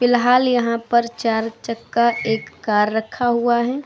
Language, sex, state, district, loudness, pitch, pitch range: Hindi, female, Uttar Pradesh, Hamirpur, -19 LUFS, 235 Hz, 225-245 Hz